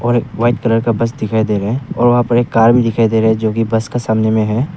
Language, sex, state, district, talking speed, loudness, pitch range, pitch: Hindi, male, Arunachal Pradesh, Papum Pare, 340 wpm, -14 LUFS, 110-120 Hz, 115 Hz